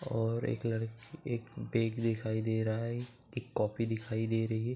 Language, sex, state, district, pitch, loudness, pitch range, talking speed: Hindi, male, Uttar Pradesh, Budaun, 115 Hz, -35 LUFS, 110-120 Hz, 190 wpm